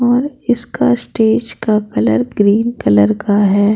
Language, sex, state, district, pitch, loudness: Hindi, female, Bihar, Patna, 205 Hz, -14 LUFS